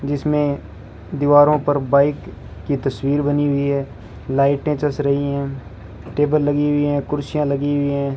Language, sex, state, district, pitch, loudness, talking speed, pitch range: Hindi, male, Rajasthan, Bikaner, 140 Hz, -19 LUFS, 155 wpm, 135-145 Hz